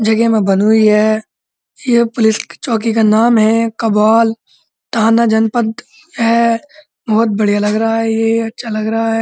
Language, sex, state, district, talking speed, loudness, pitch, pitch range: Hindi, male, Uttar Pradesh, Muzaffarnagar, 170 wpm, -13 LUFS, 225 Hz, 220-230 Hz